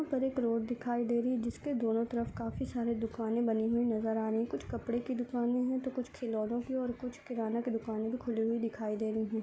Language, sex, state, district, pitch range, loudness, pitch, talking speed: Hindi, female, Bihar, Samastipur, 225-245 Hz, -34 LUFS, 235 Hz, 255 wpm